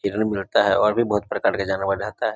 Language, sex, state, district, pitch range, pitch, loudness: Maithili, male, Bihar, Samastipur, 95-105 Hz, 100 Hz, -21 LUFS